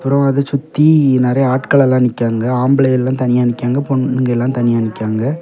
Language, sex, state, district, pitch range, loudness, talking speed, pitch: Tamil, male, Tamil Nadu, Kanyakumari, 120-135 Hz, -14 LUFS, 165 wpm, 130 Hz